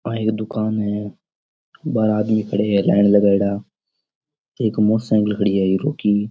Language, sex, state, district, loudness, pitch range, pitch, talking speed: Rajasthani, male, Rajasthan, Nagaur, -19 LUFS, 100-110 Hz, 105 Hz, 150 wpm